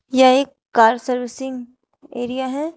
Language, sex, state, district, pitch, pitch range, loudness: Hindi, female, Uttar Pradesh, Shamli, 260 Hz, 245-270 Hz, -18 LUFS